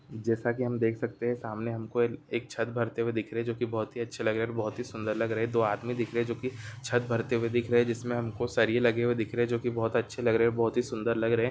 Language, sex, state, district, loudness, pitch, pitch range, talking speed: Hindi, male, Bihar, Muzaffarpur, -30 LUFS, 115 Hz, 115-120 Hz, 280 wpm